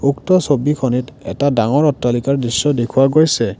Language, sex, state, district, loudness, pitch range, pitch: Assamese, male, Assam, Kamrup Metropolitan, -15 LUFS, 125-145 Hz, 140 Hz